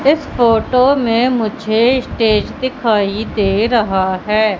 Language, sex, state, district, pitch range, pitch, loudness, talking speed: Hindi, female, Madhya Pradesh, Katni, 210-250 Hz, 225 Hz, -15 LUFS, 115 wpm